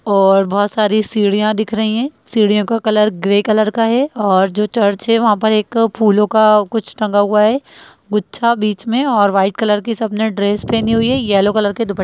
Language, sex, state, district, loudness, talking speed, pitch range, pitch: Hindi, female, Bihar, Jamui, -14 LUFS, 220 wpm, 205-225 Hz, 215 Hz